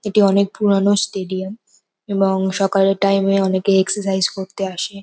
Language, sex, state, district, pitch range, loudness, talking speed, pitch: Bengali, female, West Bengal, North 24 Parganas, 190-200 Hz, -18 LUFS, 145 wpm, 195 Hz